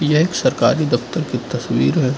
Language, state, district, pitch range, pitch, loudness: Hindi, Arunachal Pradesh, Lower Dibang Valley, 130-155 Hz, 150 Hz, -18 LUFS